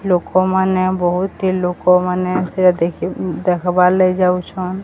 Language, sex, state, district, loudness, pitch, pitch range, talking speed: Odia, female, Odisha, Sambalpur, -16 LUFS, 180 Hz, 180-185 Hz, 125 wpm